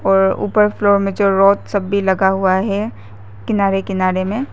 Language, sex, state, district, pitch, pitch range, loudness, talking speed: Hindi, female, Arunachal Pradesh, Papum Pare, 195 Hz, 190-200 Hz, -16 LUFS, 170 wpm